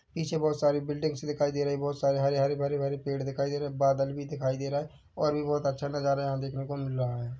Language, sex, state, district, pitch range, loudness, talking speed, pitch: Hindi, male, Chhattisgarh, Bilaspur, 140-145 Hz, -30 LUFS, 260 wpm, 140 Hz